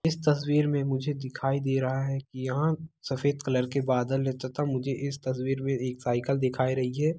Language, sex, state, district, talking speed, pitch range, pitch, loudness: Hindi, male, Bihar, Begusarai, 200 wpm, 130-145 Hz, 135 Hz, -29 LUFS